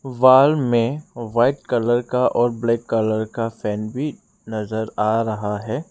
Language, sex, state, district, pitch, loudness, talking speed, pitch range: Hindi, male, Arunachal Pradesh, Lower Dibang Valley, 115 Hz, -20 LUFS, 150 wpm, 110-130 Hz